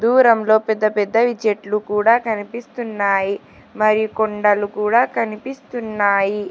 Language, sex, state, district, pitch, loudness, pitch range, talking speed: Telugu, female, Telangana, Hyderabad, 215 Hz, -18 LUFS, 205-230 Hz, 90 wpm